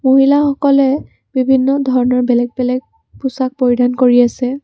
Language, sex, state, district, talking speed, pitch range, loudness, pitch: Assamese, female, Assam, Kamrup Metropolitan, 115 wpm, 250-275 Hz, -14 LUFS, 260 Hz